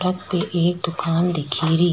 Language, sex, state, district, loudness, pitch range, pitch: Rajasthani, female, Rajasthan, Churu, -21 LUFS, 165-180 Hz, 175 Hz